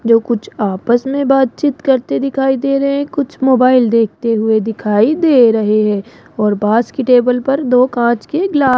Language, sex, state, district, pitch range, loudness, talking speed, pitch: Hindi, female, Rajasthan, Jaipur, 225-270 Hz, -13 LUFS, 185 wpm, 245 Hz